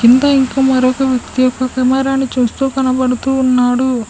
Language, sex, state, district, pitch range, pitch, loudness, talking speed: Telugu, female, Telangana, Mahabubabad, 255-265 Hz, 255 Hz, -14 LUFS, 130 wpm